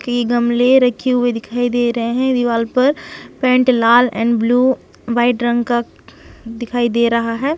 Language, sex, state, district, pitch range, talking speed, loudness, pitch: Hindi, female, Chhattisgarh, Sukma, 235-250 Hz, 165 wpm, -15 LUFS, 240 Hz